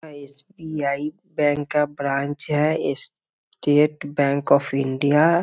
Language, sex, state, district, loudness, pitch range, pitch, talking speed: Hindi, male, Bihar, Muzaffarpur, -22 LUFS, 140-150 Hz, 145 Hz, 110 wpm